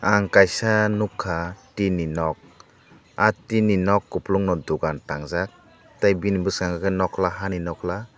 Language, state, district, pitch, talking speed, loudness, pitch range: Kokborok, Tripura, Dhalai, 95 Hz, 145 wpm, -23 LUFS, 90-100 Hz